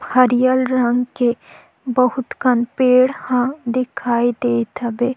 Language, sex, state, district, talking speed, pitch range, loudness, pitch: Chhattisgarhi, female, Chhattisgarh, Sukma, 115 wpm, 240-255 Hz, -17 LUFS, 250 Hz